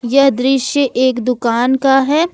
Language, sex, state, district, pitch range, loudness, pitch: Hindi, female, Jharkhand, Ranchi, 250-275 Hz, -14 LUFS, 265 Hz